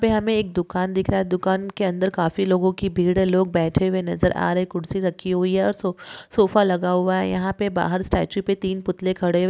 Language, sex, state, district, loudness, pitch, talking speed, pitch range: Hindi, female, Bihar, Sitamarhi, -22 LUFS, 185 Hz, 260 wpm, 180-195 Hz